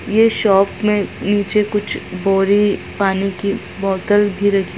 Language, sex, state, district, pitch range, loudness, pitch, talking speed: Hindi, female, Bihar, Gaya, 195-205 Hz, -17 LUFS, 200 Hz, 140 wpm